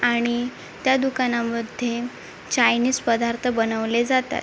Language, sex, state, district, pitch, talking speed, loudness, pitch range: Marathi, female, Maharashtra, Chandrapur, 240 Hz, 95 wpm, -22 LUFS, 235-250 Hz